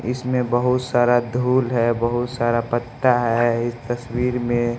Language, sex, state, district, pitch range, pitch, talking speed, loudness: Hindi, male, Bihar, West Champaran, 120-125 Hz, 120 Hz, 150 wpm, -20 LUFS